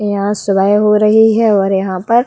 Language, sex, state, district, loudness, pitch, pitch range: Hindi, female, Uttar Pradesh, Budaun, -12 LUFS, 205 Hz, 195-220 Hz